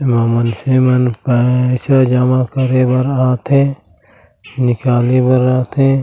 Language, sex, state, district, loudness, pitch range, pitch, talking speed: Chhattisgarhi, male, Chhattisgarh, Raigarh, -13 LUFS, 120-130 Hz, 125 Hz, 140 wpm